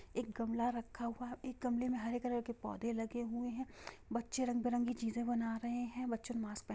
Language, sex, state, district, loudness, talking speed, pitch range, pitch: Hindi, female, Bihar, Sitamarhi, -40 LUFS, 230 wpm, 230-245 Hz, 240 Hz